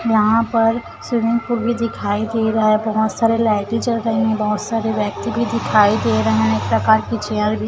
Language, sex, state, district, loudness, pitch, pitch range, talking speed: Hindi, female, Chhattisgarh, Raipur, -18 LUFS, 220 Hz, 210-230 Hz, 225 wpm